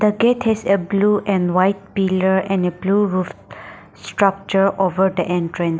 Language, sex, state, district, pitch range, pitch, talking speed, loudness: English, female, Nagaland, Dimapur, 185-200 Hz, 195 Hz, 165 wpm, -18 LUFS